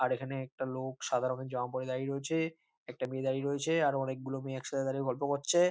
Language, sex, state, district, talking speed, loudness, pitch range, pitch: Bengali, male, West Bengal, North 24 Parganas, 220 wpm, -34 LUFS, 130-140 Hz, 135 Hz